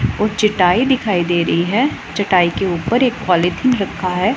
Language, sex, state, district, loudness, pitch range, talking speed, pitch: Hindi, female, Punjab, Pathankot, -16 LUFS, 175-235 Hz, 180 wpm, 195 Hz